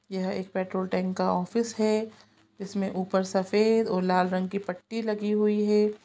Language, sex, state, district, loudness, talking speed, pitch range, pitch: Hindi, female, Chhattisgarh, Sukma, -27 LUFS, 180 wpm, 185-210 Hz, 195 Hz